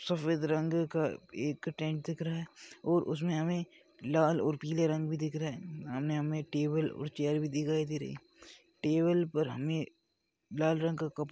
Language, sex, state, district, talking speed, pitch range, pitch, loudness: Hindi, male, Chhattisgarh, Balrampur, 185 wpm, 150-165 Hz, 155 Hz, -33 LUFS